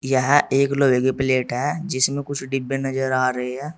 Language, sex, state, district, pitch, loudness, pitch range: Hindi, male, Uttar Pradesh, Saharanpur, 135 Hz, -21 LUFS, 130-140 Hz